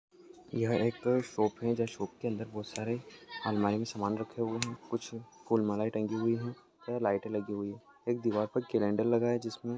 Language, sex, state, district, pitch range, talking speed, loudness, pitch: Marathi, male, Maharashtra, Sindhudurg, 110-120 Hz, 195 wpm, -33 LUFS, 115 Hz